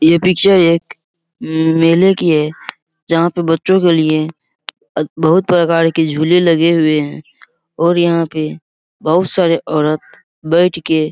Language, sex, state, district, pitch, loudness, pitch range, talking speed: Hindi, male, Bihar, Araria, 165 Hz, -13 LUFS, 155-175 Hz, 155 wpm